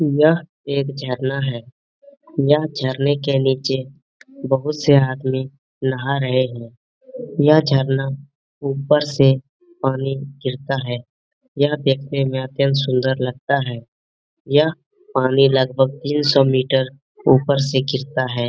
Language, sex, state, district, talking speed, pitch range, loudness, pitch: Hindi, male, Bihar, Jamui, 125 wpm, 130-145 Hz, -19 LUFS, 135 Hz